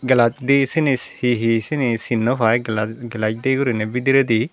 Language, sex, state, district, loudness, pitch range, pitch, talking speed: Chakma, female, Tripura, Dhalai, -19 LUFS, 115-135 Hz, 120 Hz, 185 wpm